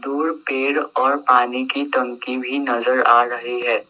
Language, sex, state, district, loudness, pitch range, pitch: Hindi, male, Assam, Sonitpur, -19 LUFS, 125-140 Hz, 130 Hz